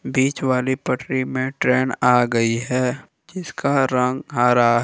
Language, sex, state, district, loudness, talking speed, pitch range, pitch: Hindi, male, Jharkhand, Deoghar, -20 LUFS, 150 wpm, 125-135 Hz, 130 Hz